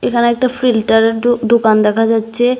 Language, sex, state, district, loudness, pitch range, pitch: Bengali, female, Tripura, West Tripura, -13 LUFS, 225-240 Hz, 235 Hz